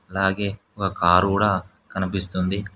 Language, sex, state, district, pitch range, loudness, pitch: Telugu, male, Telangana, Hyderabad, 95-100 Hz, -22 LUFS, 95 Hz